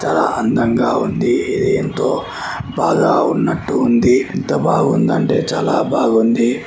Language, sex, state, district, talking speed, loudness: Telugu, male, Andhra Pradesh, Srikakulam, 110 wpm, -16 LUFS